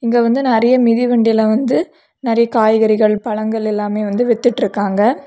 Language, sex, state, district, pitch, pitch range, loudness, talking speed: Tamil, female, Tamil Nadu, Kanyakumari, 225 Hz, 215-240 Hz, -15 LUFS, 125 wpm